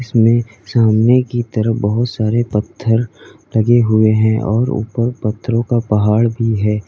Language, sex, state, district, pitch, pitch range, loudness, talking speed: Hindi, male, Uttar Pradesh, Lalitpur, 115 Hz, 110-120 Hz, -15 LUFS, 150 wpm